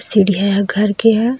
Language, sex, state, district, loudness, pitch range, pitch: Chhattisgarhi, female, Chhattisgarh, Raigarh, -14 LUFS, 200-225 Hz, 205 Hz